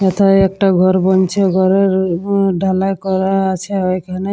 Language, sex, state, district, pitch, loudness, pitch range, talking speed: Bengali, female, West Bengal, Purulia, 190 Hz, -14 LUFS, 185-195 Hz, 125 wpm